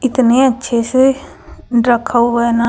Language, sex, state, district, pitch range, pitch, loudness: Hindi, female, Chhattisgarh, Raipur, 235-260 Hz, 240 Hz, -13 LUFS